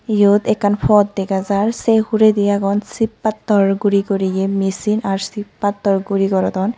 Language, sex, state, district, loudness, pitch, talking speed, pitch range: Chakma, female, Tripura, Unakoti, -17 LUFS, 205 Hz, 160 wpm, 195-210 Hz